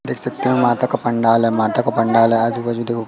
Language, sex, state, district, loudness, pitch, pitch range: Hindi, male, Madhya Pradesh, Katni, -17 LUFS, 115 Hz, 115-120 Hz